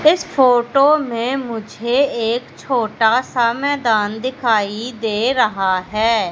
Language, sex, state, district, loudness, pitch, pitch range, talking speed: Hindi, female, Madhya Pradesh, Katni, -17 LUFS, 235 Hz, 220-260 Hz, 115 wpm